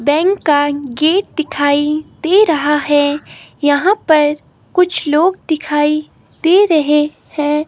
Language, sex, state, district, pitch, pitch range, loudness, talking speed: Hindi, female, Himachal Pradesh, Shimla, 300 Hz, 295-335 Hz, -14 LUFS, 115 wpm